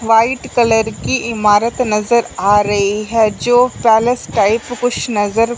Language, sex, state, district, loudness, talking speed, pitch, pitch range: Hindi, male, Punjab, Fazilka, -14 LUFS, 140 wpm, 225 Hz, 210-240 Hz